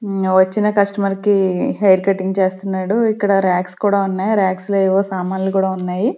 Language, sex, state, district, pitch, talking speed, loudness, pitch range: Telugu, female, Andhra Pradesh, Sri Satya Sai, 195 Hz, 165 wpm, -17 LUFS, 190-200 Hz